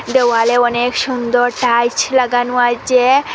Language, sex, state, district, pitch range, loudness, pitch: Bengali, female, Assam, Hailakandi, 240-255 Hz, -14 LUFS, 245 Hz